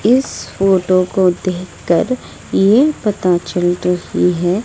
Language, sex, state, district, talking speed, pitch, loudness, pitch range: Hindi, female, Odisha, Malkangiri, 115 wpm, 185 Hz, -15 LUFS, 180-210 Hz